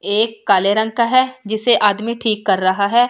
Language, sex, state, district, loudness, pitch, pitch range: Hindi, female, Delhi, New Delhi, -16 LUFS, 220 Hz, 205-235 Hz